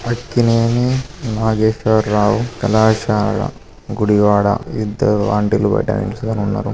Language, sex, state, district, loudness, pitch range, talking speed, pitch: Telugu, male, Andhra Pradesh, Krishna, -16 LUFS, 105-115 Hz, 100 wpm, 110 Hz